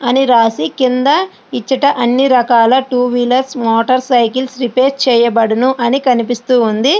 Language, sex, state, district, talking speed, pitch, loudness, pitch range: Telugu, female, Andhra Pradesh, Srikakulam, 130 wpm, 250 Hz, -12 LUFS, 235-260 Hz